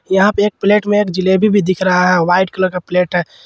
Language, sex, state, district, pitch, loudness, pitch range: Hindi, male, Jharkhand, Ranchi, 185 Hz, -14 LUFS, 180-205 Hz